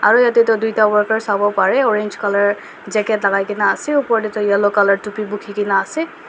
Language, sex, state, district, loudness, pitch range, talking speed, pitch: Nagamese, female, Nagaland, Dimapur, -16 LUFS, 200-220 Hz, 200 wpm, 210 Hz